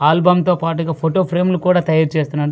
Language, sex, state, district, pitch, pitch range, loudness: Telugu, male, Andhra Pradesh, Manyam, 165 Hz, 160-180 Hz, -16 LUFS